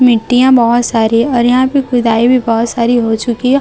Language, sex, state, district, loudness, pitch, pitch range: Hindi, female, Chhattisgarh, Raipur, -11 LUFS, 240 Hz, 230-250 Hz